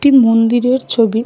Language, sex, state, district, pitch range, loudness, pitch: Bengali, female, West Bengal, Malda, 225-260 Hz, -12 LUFS, 240 Hz